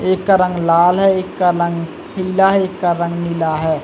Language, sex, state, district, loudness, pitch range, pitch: Hindi, male, Chhattisgarh, Bilaspur, -15 LUFS, 170-185 Hz, 175 Hz